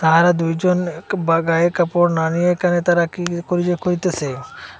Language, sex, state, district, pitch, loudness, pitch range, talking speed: Bengali, male, Assam, Hailakandi, 175 Hz, -18 LUFS, 165-175 Hz, 165 wpm